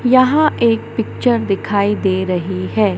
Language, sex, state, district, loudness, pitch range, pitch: Hindi, male, Madhya Pradesh, Katni, -16 LUFS, 190-240 Hz, 210 Hz